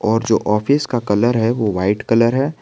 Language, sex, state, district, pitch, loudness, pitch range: Hindi, male, Jharkhand, Garhwa, 115 Hz, -17 LUFS, 105-120 Hz